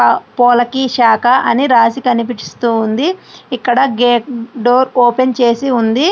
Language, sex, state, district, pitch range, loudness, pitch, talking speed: Telugu, female, Andhra Pradesh, Srikakulam, 235-255 Hz, -12 LUFS, 245 Hz, 90 wpm